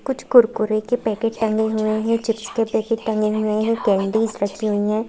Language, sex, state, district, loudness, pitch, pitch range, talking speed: Hindi, female, Madhya Pradesh, Bhopal, -20 LUFS, 220 Hz, 215-225 Hz, 200 wpm